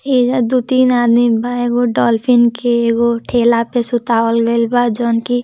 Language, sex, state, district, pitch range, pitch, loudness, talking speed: Hindi, female, Bihar, Gopalganj, 235-245 Hz, 240 Hz, -14 LUFS, 165 wpm